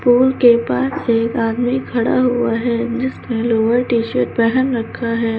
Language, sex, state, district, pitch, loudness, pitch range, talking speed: Hindi, female, Uttar Pradesh, Lucknow, 235 Hz, -17 LUFS, 230-250 Hz, 165 wpm